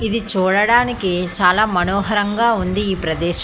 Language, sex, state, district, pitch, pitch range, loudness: Telugu, female, Telangana, Hyderabad, 200 Hz, 180-220 Hz, -17 LUFS